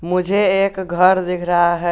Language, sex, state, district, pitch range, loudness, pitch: Hindi, male, Jharkhand, Garhwa, 175-190 Hz, -16 LUFS, 180 Hz